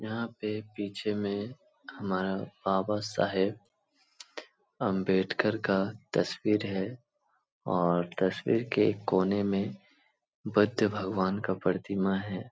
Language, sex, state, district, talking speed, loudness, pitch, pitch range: Hindi, male, Uttar Pradesh, Etah, 105 wpm, -30 LUFS, 100 Hz, 95-105 Hz